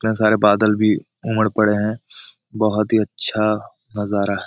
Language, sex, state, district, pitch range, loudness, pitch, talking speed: Hindi, male, Jharkhand, Jamtara, 105-110 Hz, -18 LUFS, 110 Hz, 160 wpm